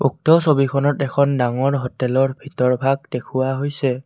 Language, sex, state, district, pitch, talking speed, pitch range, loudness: Assamese, male, Assam, Kamrup Metropolitan, 135 Hz, 135 wpm, 130-140 Hz, -19 LUFS